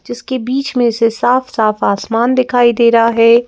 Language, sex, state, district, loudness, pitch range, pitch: Hindi, female, Madhya Pradesh, Bhopal, -13 LUFS, 230-250 Hz, 235 Hz